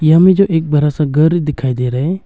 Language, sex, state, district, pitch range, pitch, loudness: Hindi, male, Arunachal Pradesh, Longding, 145-170 Hz, 155 Hz, -13 LUFS